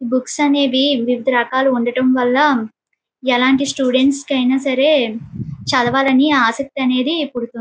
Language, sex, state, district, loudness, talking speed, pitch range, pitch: Telugu, female, Andhra Pradesh, Srikakulam, -16 LUFS, 110 wpm, 250-275 Hz, 260 Hz